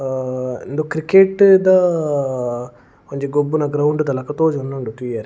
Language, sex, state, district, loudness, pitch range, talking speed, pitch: Tulu, male, Karnataka, Dakshina Kannada, -17 LUFS, 130-155 Hz, 135 wpm, 145 Hz